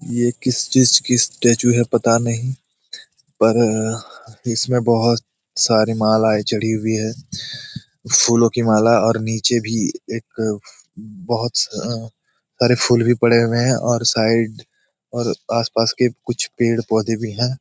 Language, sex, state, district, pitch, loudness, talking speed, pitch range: Hindi, male, Jharkhand, Jamtara, 115 Hz, -17 LUFS, 150 wpm, 110-120 Hz